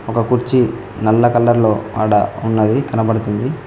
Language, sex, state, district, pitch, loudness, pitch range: Telugu, male, Telangana, Mahabubabad, 115 Hz, -15 LUFS, 110-120 Hz